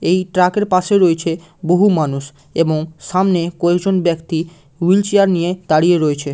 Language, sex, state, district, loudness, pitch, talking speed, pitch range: Bengali, male, West Bengal, Malda, -16 LUFS, 175 Hz, 130 wpm, 160-185 Hz